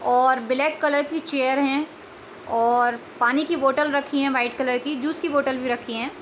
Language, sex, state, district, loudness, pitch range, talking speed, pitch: Hindi, female, Uttar Pradesh, Etah, -22 LUFS, 255-300 Hz, 205 wpm, 280 Hz